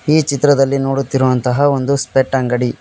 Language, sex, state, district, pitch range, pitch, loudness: Kannada, male, Karnataka, Koppal, 130-140 Hz, 135 Hz, -15 LUFS